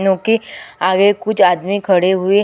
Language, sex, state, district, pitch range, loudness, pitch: Hindi, female, Chhattisgarh, Sukma, 185-205 Hz, -15 LUFS, 195 Hz